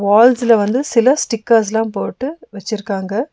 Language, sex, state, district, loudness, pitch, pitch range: Tamil, female, Tamil Nadu, Nilgiris, -15 LUFS, 230 Hz, 210-245 Hz